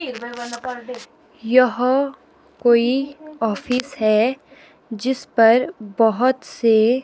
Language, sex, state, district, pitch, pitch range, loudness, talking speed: Hindi, female, Himachal Pradesh, Shimla, 250 Hz, 230-265 Hz, -19 LUFS, 70 wpm